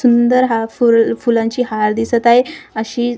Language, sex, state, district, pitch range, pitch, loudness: Marathi, female, Maharashtra, Gondia, 225-245 Hz, 235 Hz, -14 LUFS